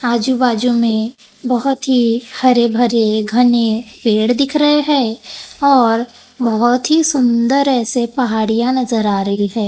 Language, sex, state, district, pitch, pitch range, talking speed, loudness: Hindi, female, Maharashtra, Gondia, 240 Hz, 225-255 Hz, 135 wpm, -14 LUFS